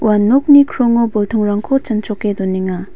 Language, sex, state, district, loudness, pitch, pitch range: Garo, female, Meghalaya, West Garo Hills, -14 LUFS, 215 Hz, 205-245 Hz